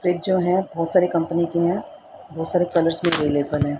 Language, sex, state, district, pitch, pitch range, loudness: Hindi, female, Haryana, Rohtak, 170 Hz, 160-180 Hz, -20 LUFS